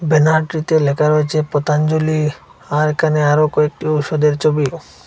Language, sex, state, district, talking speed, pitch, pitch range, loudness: Bengali, male, Assam, Hailakandi, 120 wpm, 155 Hz, 150-155 Hz, -16 LUFS